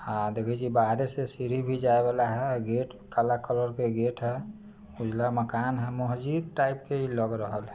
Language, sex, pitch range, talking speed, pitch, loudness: Bajjika, male, 115-130 Hz, 200 wpm, 120 Hz, -29 LUFS